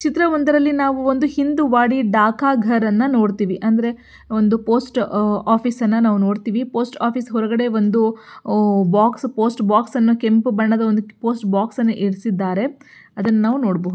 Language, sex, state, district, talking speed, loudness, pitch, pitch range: Kannada, female, Karnataka, Belgaum, 140 wpm, -18 LUFS, 225 Hz, 215-245 Hz